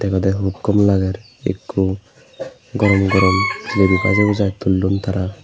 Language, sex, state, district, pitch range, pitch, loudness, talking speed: Chakma, male, Tripura, Unakoti, 95-105 Hz, 95 Hz, -17 LUFS, 130 wpm